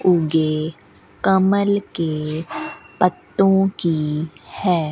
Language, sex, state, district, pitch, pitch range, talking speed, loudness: Hindi, female, Rajasthan, Bikaner, 165 Hz, 155-190 Hz, 75 wpm, -20 LUFS